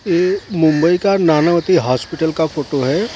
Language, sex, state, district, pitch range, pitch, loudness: Hindi, male, Maharashtra, Mumbai Suburban, 155-180 Hz, 165 Hz, -15 LUFS